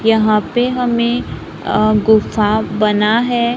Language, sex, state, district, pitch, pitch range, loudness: Hindi, female, Maharashtra, Gondia, 220 Hz, 215-240 Hz, -14 LUFS